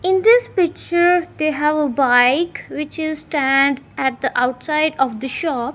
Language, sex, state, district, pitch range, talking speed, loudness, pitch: English, female, Punjab, Kapurthala, 265-335 Hz, 165 wpm, -18 LUFS, 300 Hz